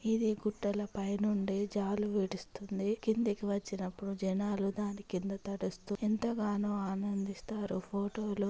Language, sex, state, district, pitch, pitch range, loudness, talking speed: Telugu, female, Andhra Pradesh, Chittoor, 205 Hz, 195-210 Hz, -36 LUFS, 100 wpm